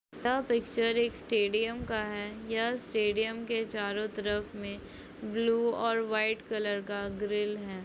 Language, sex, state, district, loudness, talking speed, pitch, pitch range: Hindi, female, West Bengal, Purulia, -31 LUFS, 145 wpm, 215 Hz, 205-230 Hz